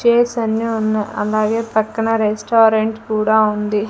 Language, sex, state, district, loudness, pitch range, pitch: Telugu, female, Andhra Pradesh, Sri Satya Sai, -17 LUFS, 215-225 Hz, 220 Hz